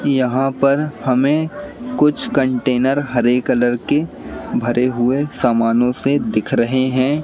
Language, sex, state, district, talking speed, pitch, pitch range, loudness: Hindi, male, Madhya Pradesh, Katni, 125 wpm, 130 Hz, 125-145 Hz, -17 LUFS